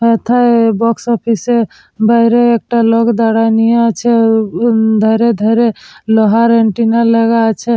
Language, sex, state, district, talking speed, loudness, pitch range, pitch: Bengali, female, West Bengal, Purulia, 125 wpm, -11 LUFS, 225-235 Hz, 230 Hz